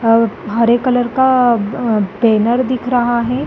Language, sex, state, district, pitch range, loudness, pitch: Hindi, female, Chhattisgarh, Rajnandgaon, 225-250 Hz, -14 LUFS, 240 Hz